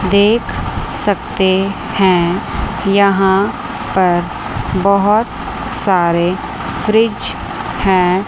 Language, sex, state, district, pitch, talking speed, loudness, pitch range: Hindi, female, Chandigarh, Chandigarh, 190 Hz, 65 wpm, -15 LUFS, 185-200 Hz